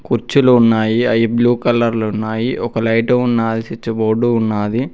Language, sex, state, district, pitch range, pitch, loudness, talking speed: Telugu, male, Telangana, Mahabubabad, 110-120 Hz, 115 Hz, -15 LUFS, 160 wpm